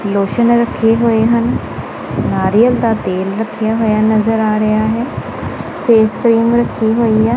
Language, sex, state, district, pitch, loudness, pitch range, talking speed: Punjabi, female, Punjab, Kapurthala, 220 Hz, -14 LUFS, 215-235 Hz, 145 wpm